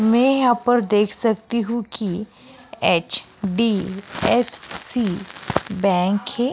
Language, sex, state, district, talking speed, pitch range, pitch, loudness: Hindi, female, Uttar Pradesh, Jyotiba Phule Nagar, 90 wpm, 200-245 Hz, 225 Hz, -21 LUFS